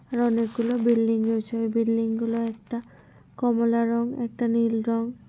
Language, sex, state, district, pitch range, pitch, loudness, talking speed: Bengali, female, West Bengal, Kolkata, 230-235 Hz, 230 Hz, -25 LUFS, 135 wpm